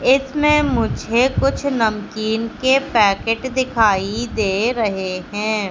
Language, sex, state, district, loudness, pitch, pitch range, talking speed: Hindi, female, Madhya Pradesh, Katni, -18 LUFS, 225 Hz, 210-260 Hz, 105 wpm